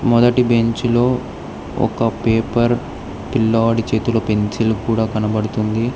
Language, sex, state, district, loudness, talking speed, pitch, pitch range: Telugu, male, Telangana, Hyderabad, -17 LUFS, 100 wpm, 115 Hz, 110-120 Hz